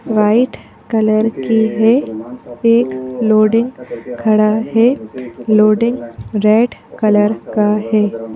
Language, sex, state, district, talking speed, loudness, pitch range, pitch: Hindi, female, Madhya Pradesh, Bhopal, 95 wpm, -14 LUFS, 210-225 Hz, 215 Hz